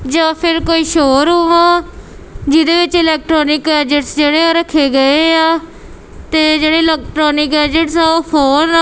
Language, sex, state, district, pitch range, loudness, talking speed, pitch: Punjabi, female, Punjab, Kapurthala, 300-330 Hz, -11 LUFS, 145 wpm, 320 Hz